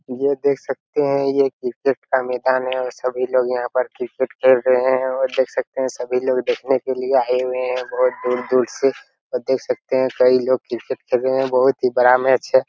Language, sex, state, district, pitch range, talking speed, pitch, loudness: Hindi, male, Chhattisgarh, Raigarh, 125-130 Hz, 225 wpm, 130 Hz, -19 LUFS